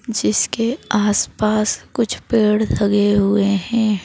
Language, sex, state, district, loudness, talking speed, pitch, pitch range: Hindi, female, Madhya Pradesh, Bhopal, -18 LUFS, 105 wpm, 210 Hz, 205-230 Hz